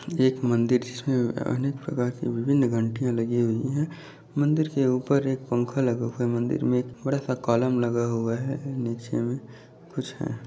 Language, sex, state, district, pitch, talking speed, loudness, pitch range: Hindi, male, Chhattisgarh, Bastar, 125 Hz, 185 wpm, -26 LUFS, 120-140 Hz